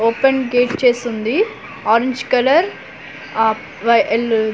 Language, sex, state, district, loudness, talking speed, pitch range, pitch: Telugu, female, Andhra Pradesh, Manyam, -17 LUFS, 120 wpm, 225-260 Hz, 240 Hz